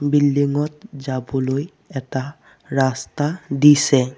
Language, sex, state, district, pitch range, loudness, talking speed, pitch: Assamese, male, Assam, Sonitpur, 135-150 Hz, -19 LUFS, 85 wpm, 140 Hz